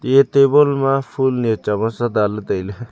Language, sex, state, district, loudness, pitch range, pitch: Wancho, male, Arunachal Pradesh, Longding, -17 LUFS, 110-135 Hz, 120 Hz